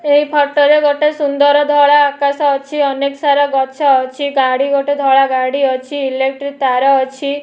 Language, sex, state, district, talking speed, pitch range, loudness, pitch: Odia, female, Odisha, Nuapada, 160 wpm, 270-290 Hz, -13 LUFS, 280 Hz